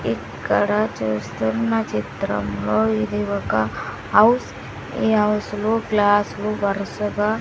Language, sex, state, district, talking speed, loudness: Telugu, female, Andhra Pradesh, Sri Satya Sai, 95 wpm, -21 LUFS